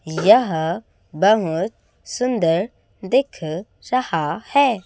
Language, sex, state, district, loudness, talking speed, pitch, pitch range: Hindi, female, Chhattisgarh, Raipur, -20 LUFS, 75 wpm, 200 Hz, 165-250 Hz